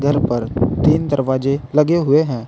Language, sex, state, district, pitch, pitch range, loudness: Hindi, male, Uttar Pradesh, Saharanpur, 140 Hz, 125-150 Hz, -17 LUFS